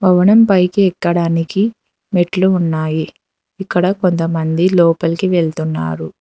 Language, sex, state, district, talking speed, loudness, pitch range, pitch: Telugu, female, Telangana, Hyderabad, 85 wpm, -15 LUFS, 165-190 Hz, 175 Hz